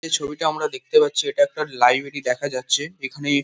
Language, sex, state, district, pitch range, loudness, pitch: Bengali, male, West Bengal, North 24 Parganas, 140-170 Hz, -21 LUFS, 145 Hz